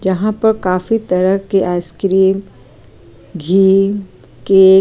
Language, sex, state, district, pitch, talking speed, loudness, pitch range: Hindi, female, Chhattisgarh, Kabirdham, 190 Hz, 110 wpm, -14 LUFS, 180-195 Hz